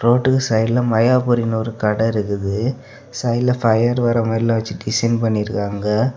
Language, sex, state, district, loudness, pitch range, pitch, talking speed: Tamil, male, Tamil Nadu, Kanyakumari, -18 LUFS, 110-120 Hz, 115 Hz, 125 wpm